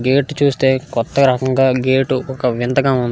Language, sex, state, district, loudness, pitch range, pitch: Telugu, male, Telangana, Karimnagar, -16 LUFS, 130-135 Hz, 130 Hz